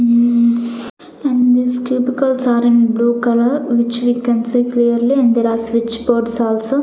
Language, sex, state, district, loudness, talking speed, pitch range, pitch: English, female, Chandigarh, Chandigarh, -15 LUFS, 165 wpm, 235-245 Hz, 235 Hz